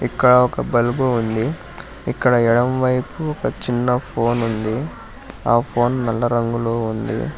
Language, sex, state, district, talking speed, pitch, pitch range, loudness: Telugu, male, Telangana, Hyderabad, 120 wpm, 120 Hz, 115-125 Hz, -19 LUFS